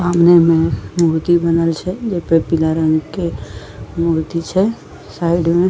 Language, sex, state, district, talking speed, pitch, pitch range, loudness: Maithili, female, Bihar, Madhepura, 150 wpm, 165 Hz, 160-175 Hz, -16 LUFS